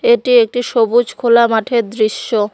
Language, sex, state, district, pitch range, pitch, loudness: Bengali, female, West Bengal, Cooch Behar, 220-240 Hz, 235 Hz, -14 LUFS